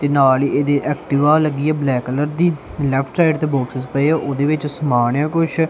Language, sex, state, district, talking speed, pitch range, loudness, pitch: Punjabi, male, Punjab, Kapurthala, 230 wpm, 135-155 Hz, -17 LUFS, 145 Hz